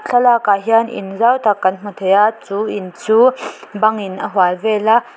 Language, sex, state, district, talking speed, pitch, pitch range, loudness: Mizo, female, Mizoram, Aizawl, 220 wpm, 210 Hz, 195-230 Hz, -15 LUFS